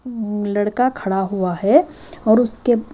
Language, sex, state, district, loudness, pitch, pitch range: Hindi, female, Himachal Pradesh, Shimla, -18 LUFS, 225 Hz, 205-250 Hz